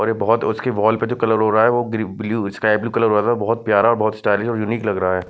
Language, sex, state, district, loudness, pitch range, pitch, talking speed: Hindi, male, Chandigarh, Chandigarh, -18 LUFS, 105-115 Hz, 110 Hz, 305 wpm